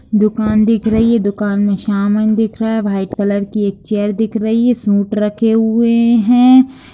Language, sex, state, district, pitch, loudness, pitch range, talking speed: Hindi, female, Bihar, Lakhisarai, 215 Hz, -14 LUFS, 205-225 Hz, 190 wpm